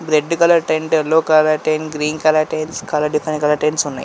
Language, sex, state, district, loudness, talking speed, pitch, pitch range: Telugu, male, Andhra Pradesh, Visakhapatnam, -16 LUFS, 190 wpm, 155 Hz, 150-160 Hz